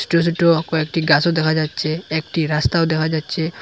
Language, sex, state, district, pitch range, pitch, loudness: Bengali, male, Assam, Hailakandi, 155-165 Hz, 160 Hz, -18 LUFS